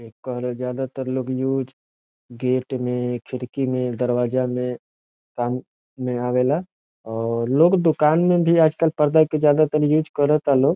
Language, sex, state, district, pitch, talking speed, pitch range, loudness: Bhojpuri, male, Bihar, Saran, 130 Hz, 160 wpm, 125-150 Hz, -21 LUFS